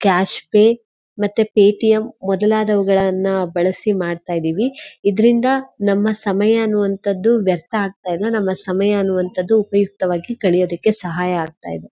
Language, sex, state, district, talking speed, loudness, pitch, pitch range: Kannada, female, Karnataka, Shimoga, 115 wpm, -17 LUFS, 200 Hz, 185-220 Hz